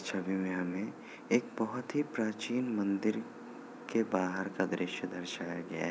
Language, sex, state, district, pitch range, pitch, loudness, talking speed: Hindi, male, Bihar, Kishanganj, 95-115 Hz, 110 Hz, -35 LUFS, 175 wpm